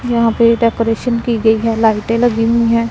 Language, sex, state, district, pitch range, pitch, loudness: Hindi, male, Punjab, Pathankot, 225-235 Hz, 230 Hz, -14 LUFS